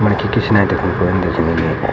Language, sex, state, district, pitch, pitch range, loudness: Garhwali, male, Uttarakhand, Uttarkashi, 95 Hz, 85-105 Hz, -16 LUFS